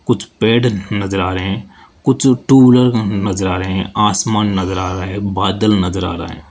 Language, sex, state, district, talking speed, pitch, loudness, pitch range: Hindi, male, Rajasthan, Jaipur, 210 wpm, 100 Hz, -15 LUFS, 95-110 Hz